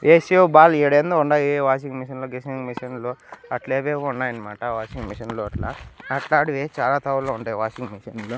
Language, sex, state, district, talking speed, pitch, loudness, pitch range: Telugu, male, Andhra Pradesh, Annamaya, 180 wpm, 130 Hz, -21 LUFS, 120-145 Hz